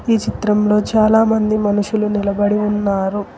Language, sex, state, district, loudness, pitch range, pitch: Telugu, female, Telangana, Hyderabad, -16 LUFS, 205-215 Hz, 210 Hz